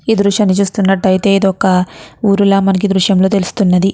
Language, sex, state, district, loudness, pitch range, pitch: Telugu, female, Andhra Pradesh, Guntur, -12 LUFS, 190-200 Hz, 195 Hz